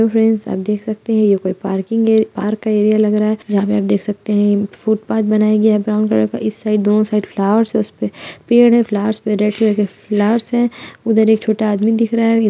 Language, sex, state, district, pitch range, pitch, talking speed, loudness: Hindi, female, Bihar, Muzaffarpur, 210-220 Hz, 215 Hz, 240 wpm, -15 LUFS